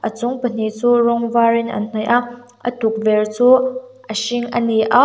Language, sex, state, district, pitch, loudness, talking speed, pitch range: Mizo, female, Mizoram, Aizawl, 235 Hz, -17 LUFS, 215 wpm, 220-245 Hz